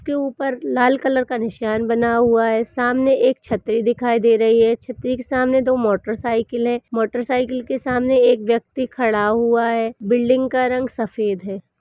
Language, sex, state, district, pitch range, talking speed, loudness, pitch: Hindi, female, Uttarakhand, Uttarkashi, 225-255 Hz, 180 wpm, -19 LUFS, 240 Hz